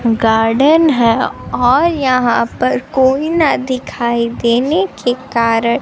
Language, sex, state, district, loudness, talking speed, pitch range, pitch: Hindi, female, Bihar, Kaimur, -14 LUFS, 115 wpm, 235-285 Hz, 250 Hz